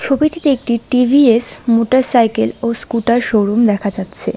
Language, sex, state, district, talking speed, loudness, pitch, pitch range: Bengali, female, West Bengal, Alipurduar, 125 wpm, -14 LUFS, 235 Hz, 225-255 Hz